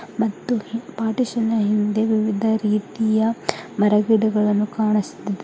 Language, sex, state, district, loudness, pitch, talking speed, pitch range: Kannada, female, Karnataka, Bidar, -21 LUFS, 220 Hz, 100 wpm, 210-225 Hz